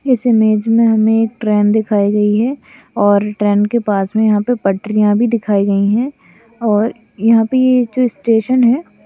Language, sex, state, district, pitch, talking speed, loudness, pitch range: Hindi, female, Bihar, Purnia, 220 Hz, 185 wpm, -14 LUFS, 210-235 Hz